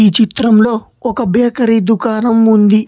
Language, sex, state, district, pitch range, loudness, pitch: Telugu, male, Telangana, Hyderabad, 215-235 Hz, -12 LUFS, 225 Hz